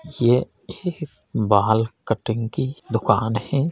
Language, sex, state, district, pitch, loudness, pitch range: Hindi, male, Uttar Pradesh, Jalaun, 115 Hz, -22 LUFS, 110-145 Hz